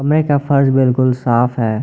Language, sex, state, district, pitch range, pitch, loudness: Hindi, male, Jharkhand, Garhwa, 120-140 Hz, 130 Hz, -14 LUFS